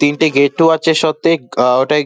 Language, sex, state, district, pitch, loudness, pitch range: Bengali, male, West Bengal, Paschim Medinipur, 155 Hz, -13 LUFS, 140-160 Hz